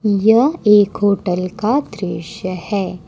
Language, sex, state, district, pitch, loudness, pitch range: Hindi, female, Jharkhand, Ranchi, 200 Hz, -16 LUFS, 185-215 Hz